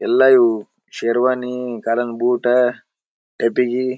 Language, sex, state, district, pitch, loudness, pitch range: Kannada, male, Karnataka, Bijapur, 125 Hz, -18 LUFS, 120-125 Hz